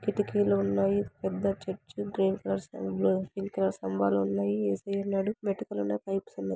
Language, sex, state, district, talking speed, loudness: Telugu, female, Andhra Pradesh, Anantapur, 75 wpm, -30 LUFS